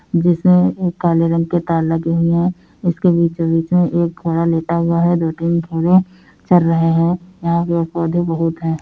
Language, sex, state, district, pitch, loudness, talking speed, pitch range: Hindi, female, Uttar Pradesh, Budaun, 170 Hz, -16 LUFS, 185 wpm, 165-175 Hz